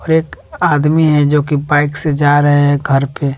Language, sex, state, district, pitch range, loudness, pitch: Hindi, male, Bihar, West Champaran, 145-150 Hz, -13 LUFS, 145 Hz